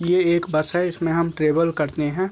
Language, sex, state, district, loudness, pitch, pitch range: Hindi, male, Chhattisgarh, Raigarh, -21 LUFS, 165 Hz, 155-175 Hz